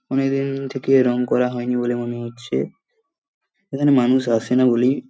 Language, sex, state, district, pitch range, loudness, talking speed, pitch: Bengali, male, West Bengal, Paschim Medinipur, 125-135 Hz, -20 LUFS, 155 wpm, 130 Hz